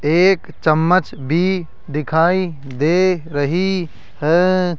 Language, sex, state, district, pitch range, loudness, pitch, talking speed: Hindi, male, Rajasthan, Jaipur, 155-185 Hz, -17 LUFS, 170 Hz, 90 wpm